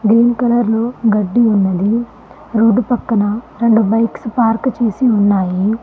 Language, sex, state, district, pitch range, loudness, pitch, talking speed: Telugu, female, Telangana, Mahabubabad, 215-235 Hz, -14 LUFS, 225 Hz, 115 wpm